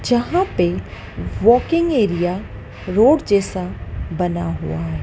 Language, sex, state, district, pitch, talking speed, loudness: Hindi, female, Madhya Pradesh, Dhar, 180 Hz, 105 wpm, -19 LUFS